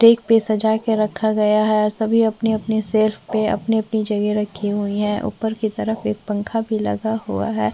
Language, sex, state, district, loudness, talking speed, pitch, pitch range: Hindi, female, Chhattisgarh, Korba, -20 LUFS, 200 wpm, 215 Hz, 210-220 Hz